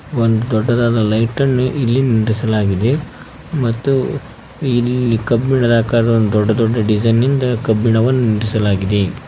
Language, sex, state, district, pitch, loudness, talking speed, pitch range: Kannada, male, Karnataka, Koppal, 115 Hz, -15 LUFS, 95 wpm, 110-125 Hz